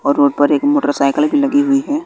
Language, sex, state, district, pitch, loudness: Hindi, male, Bihar, West Champaran, 145 Hz, -14 LUFS